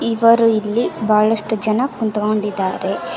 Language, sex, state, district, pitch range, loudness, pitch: Kannada, female, Karnataka, Koppal, 210-230 Hz, -17 LUFS, 215 Hz